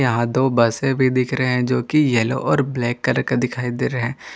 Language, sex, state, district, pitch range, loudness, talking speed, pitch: Hindi, male, Jharkhand, Garhwa, 120-130 Hz, -19 LUFS, 220 wpm, 125 Hz